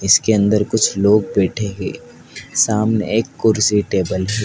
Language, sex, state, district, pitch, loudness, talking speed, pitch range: Hindi, male, Madhya Pradesh, Dhar, 105 Hz, -17 LUFS, 160 wpm, 100-110 Hz